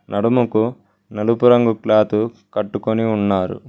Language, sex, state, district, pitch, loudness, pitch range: Telugu, male, Telangana, Mahabubabad, 110 Hz, -18 LUFS, 105-115 Hz